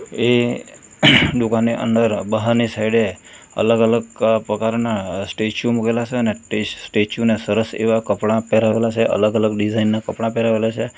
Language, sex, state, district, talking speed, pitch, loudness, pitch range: Gujarati, male, Gujarat, Valsad, 150 wpm, 115 Hz, -18 LUFS, 110-115 Hz